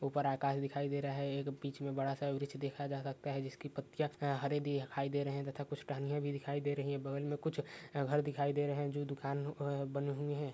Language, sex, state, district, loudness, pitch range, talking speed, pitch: Hindi, male, Rajasthan, Nagaur, -39 LUFS, 140-145 Hz, 245 wpm, 140 Hz